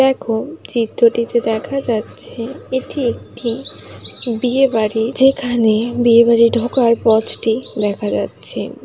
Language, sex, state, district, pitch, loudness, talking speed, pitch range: Bengali, female, West Bengal, Jalpaiguri, 235 Hz, -16 LUFS, 110 wpm, 225-250 Hz